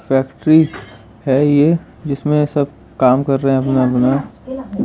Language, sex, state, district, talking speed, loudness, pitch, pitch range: Hindi, male, Uttar Pradesh, Hamirpur, 125 wpm, -15 LUFS, 135 Hz, 130-150 Hz